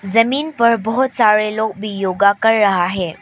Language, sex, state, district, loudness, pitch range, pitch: Hindi, female, Arunachal Pradesh, Papum Pare, -15 LUFS, 200-230 Hz, 215 Hz